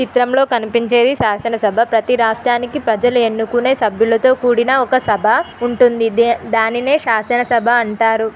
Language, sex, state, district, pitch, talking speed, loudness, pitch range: Telugu, female, Telangana, Nalgonda, 235 Hz, 115 wpm, -14 LUFS, 225-245 Hz